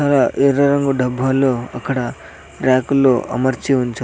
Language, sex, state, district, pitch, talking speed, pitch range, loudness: Telugu, male, Andhra Pradesh, Sri Satya Sai, 130 Hz, 120 wpm, 125-140 Hz, -17 LUFS